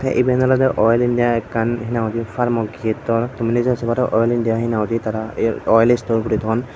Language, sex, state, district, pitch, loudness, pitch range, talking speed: Chakma, male, Tripura, Dhalai, 115 Hz, -18 LUFS, 115-120 Hz, 150 wpm